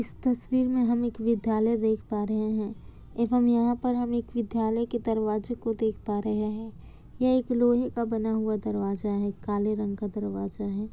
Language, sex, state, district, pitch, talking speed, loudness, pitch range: Hindi, female, Bihar, Kishanganj, 220 Hz, 195 wpm, -28 LUFS, 210-240 Hz